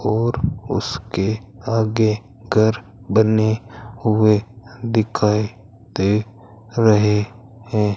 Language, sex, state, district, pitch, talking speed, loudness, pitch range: Hindi, male, Rajasthan, Bikaner, 110 Hz, 75 wpm, -19 LUFS, 105-115 Hz